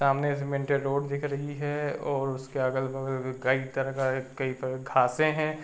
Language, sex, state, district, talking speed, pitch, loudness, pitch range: Hindi, male, Uttar Pradesh, Varanasi, 170 wpm, 135 Hz, -29 LUFS, 130-140 Hz